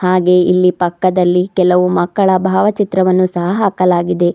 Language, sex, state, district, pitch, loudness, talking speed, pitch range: Kannada, female, Karnataka, Bidar, 180 Hz, -13 LUFS, 110 wpm, 180-185 Hz